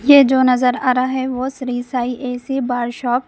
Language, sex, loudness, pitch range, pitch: Hindi, female, -17 LUFS, 245-260 Hz, 255 Hz